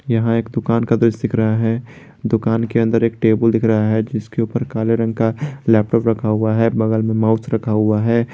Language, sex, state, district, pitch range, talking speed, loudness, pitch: Hindi, male, Jharkhand, Garhwa, 110-115 Hz, 215 wpm, -17 LUFS, 115 Hz